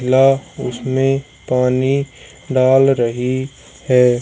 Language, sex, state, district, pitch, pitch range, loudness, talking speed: Hindi, male, Haryana, Jhajjar, 130 Hz, 125-135 Hz, -16 LUFS, 85 wpm